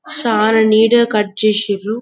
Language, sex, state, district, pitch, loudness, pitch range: Telugu, male, Telangana, Karimnagar, 220 Hz, -14 LUFS, 215-230 Hz